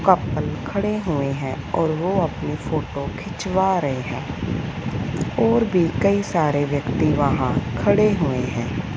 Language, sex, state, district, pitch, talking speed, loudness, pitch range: Hindi, female, Punjab, Fazilka, 150 Hz, 135 wpm, -22 LUFS, 130-185 Hz